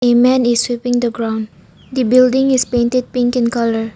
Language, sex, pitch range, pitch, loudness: English, female, 235-250 Hz, 245 Hz, -15 LUFS